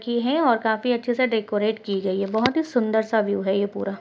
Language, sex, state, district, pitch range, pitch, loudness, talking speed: Hindi, female, Bihar, Sitamarhi, 205-240 Hz, 220 Hz, -23 LUFS, 270 wpm